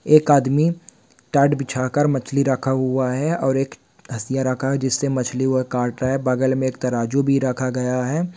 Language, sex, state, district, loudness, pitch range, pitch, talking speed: Hindi, male, Bihar, Saran, -20 LUFS, 130-140 Hz, 130 Hz, 210 wpm